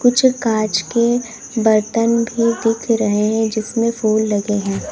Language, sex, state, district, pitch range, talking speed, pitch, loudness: Hindi, female, Uttar Pradesh, Lalitpur, 215-230 Hz, 145 wpm, 225 Hz, -17 LUFS